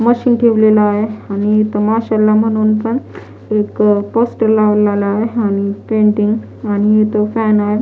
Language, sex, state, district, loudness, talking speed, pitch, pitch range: Marathi, female, Maharashtra, Washim, -14 LUFS, 140 wpm, 215 Hz, 210-220 Hz